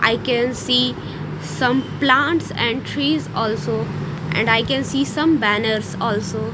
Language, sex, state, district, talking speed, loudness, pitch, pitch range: English, female, Odisha, Nuapada, 135 wpm, -19 LUFS, 215 Hz, 155-250 Hz